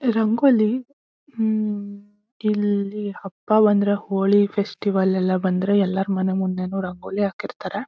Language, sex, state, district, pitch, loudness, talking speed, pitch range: Kannada, female, Karnataka, Shimoga, 205 Hz, -21 LUFS, 100 wpm, 195-215 Hz